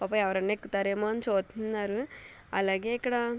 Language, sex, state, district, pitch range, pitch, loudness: Telugu, female, Telangana, Nalgonda, 195-230 Hz, 210 Hz, -30 LUFS